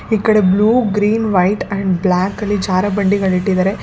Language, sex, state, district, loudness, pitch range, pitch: Kannada, female, Karnataka, Bangalore, -15 LUFS, 190-210 Hz, 200 Hz